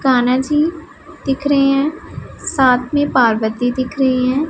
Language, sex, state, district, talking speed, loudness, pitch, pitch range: Hindi, female, Punjab, Pathankot, 145 wpm, -16 LUFS, 270 Hz, 255-290 Hz